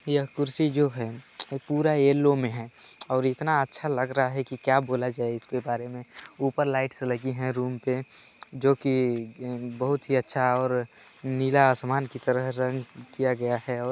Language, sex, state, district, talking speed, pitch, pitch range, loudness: Hindi, male, Chhattisgarh, Balrampur, 185 wpm, 130 Hz, 125-135 Hz, -27 LUFS